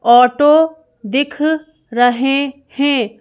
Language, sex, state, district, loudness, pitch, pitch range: Hindi, female, Madhya Pradesh, Bhopal, -14 LUFS, 275 Hz, 240-295 Hz